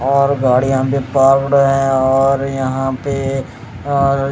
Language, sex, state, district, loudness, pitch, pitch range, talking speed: Hindi, male, Odisha, Khordha, -15 LUFS, 135 Hz, 130-135 Hz, 125 wpm